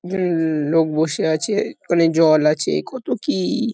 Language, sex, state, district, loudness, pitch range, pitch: Bengali, male, West Bengal, Kolkata, -19 LUFS, 155-180 Hz, 165 Hz